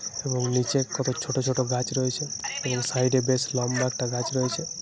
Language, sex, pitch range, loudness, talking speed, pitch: Bengali, male, 125-135 Hz, -26 LUFS, 175 wpm, 130 Hz